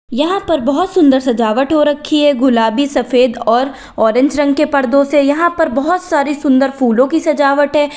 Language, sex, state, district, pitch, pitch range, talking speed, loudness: Hindi, female, Uttar Pradesh, Lalitpur, 285 Hz, 265-300 Hz, 190 wpm, -13 LUFS